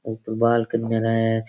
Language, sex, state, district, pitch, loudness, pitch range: Rajasthani, male, Rajasthan, Churu, 115 Hz, -22 LUFS, 110-115 Hz